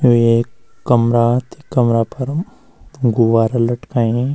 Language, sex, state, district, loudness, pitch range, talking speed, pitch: Garhwali, male, Uttarakhand, Uttarkashi, -16 LUFS, 115-130 Hz, 110 wpm, 120 Hz